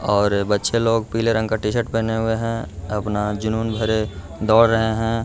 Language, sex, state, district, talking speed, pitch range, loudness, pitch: Hindi, male, Bihar, Gaya, 180 wpm, 105-115 Hz, -20 LUFS, 110 Hz